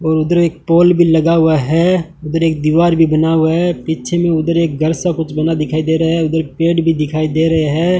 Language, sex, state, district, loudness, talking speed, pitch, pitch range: Hindi, male, Rajasthan, Bikaner, -14 LUFS, 245 wpm, 160 Hz, 160-170 Hz